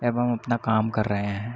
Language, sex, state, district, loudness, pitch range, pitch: Hindi, male, Chhattisgarh, Bilaspur, -25 LUFS, 110-120 Hz, 110 Hz